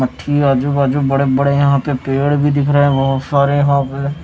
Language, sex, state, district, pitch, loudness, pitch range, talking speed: Hindi, male, Chhattisgarh, Raipur, 140 Hz, -14 LUFS, 135-145 Hz, 200 wpm